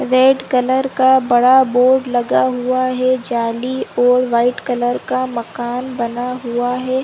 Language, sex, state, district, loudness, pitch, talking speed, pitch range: Hindi, female, Chhattisgarh, Korba, -16 LUFS, 250 Hz, 145 wpm, 245-255 Hz